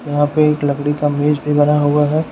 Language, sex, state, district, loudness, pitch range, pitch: Hindi, male, Uttar Pradesh, Lucknow, -15 LUFS, 145-150 Hz, 145 Hz